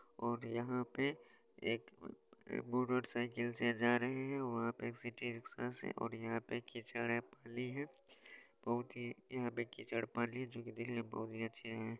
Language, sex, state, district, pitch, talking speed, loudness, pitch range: Hindi, male, Bihar, Supaul, 120 Hz, 200 wpm, -41 LUFS, 115-125 Hz